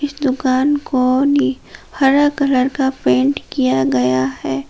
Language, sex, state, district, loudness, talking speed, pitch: Hindi, female, Jharkhand, Palamu, -16 LUFS, 140 wpm, 260 Hz